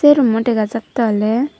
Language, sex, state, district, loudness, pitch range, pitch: Chakma, female, Tripura, Dhalai, -16 LUFS, 220-270 Hz, 230 Hz